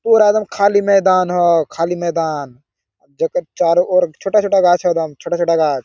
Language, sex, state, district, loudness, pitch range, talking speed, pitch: Hindi, male, Jharkhand, Sahebganj, -15 LUFS, 165-200 Hz, 185 wpm, 175 Hz